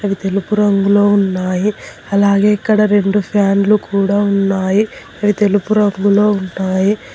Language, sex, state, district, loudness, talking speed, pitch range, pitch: Telugu, female, Telangana, Hyderabad, -14 LUFS, 115 wpm, 195-210 Hz, 200 Hz